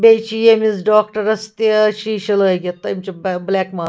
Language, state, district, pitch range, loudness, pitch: Kashmiri, Punjab, Kapurthala, 190-220 Hz, -16 LUFS, 215 Hz